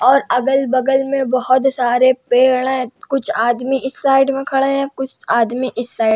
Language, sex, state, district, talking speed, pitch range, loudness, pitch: Hindi, female, Uttar Pradesh, Hamirpur, 175 wpm, 250-270 Hz, -16 LUFS, 260 Hz